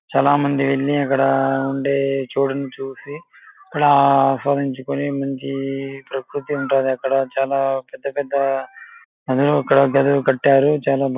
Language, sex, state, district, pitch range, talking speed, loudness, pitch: Telugu, male, Andhra Pradesh, Anantapur, 135-140 Hz, 100 wpm, -19 LUFS, 135 Hz